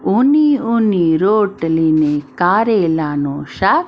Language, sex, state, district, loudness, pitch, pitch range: Gujarati, female, Maharashtra, Mumbai Suburban, -15 LUFS, 180 Hz, 160-225 Hz